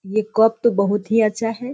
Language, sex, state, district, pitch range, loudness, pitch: Hindi, female, Bihar, Sitamarhi, 210-225 Hz, -19 LUFS, 220 Hz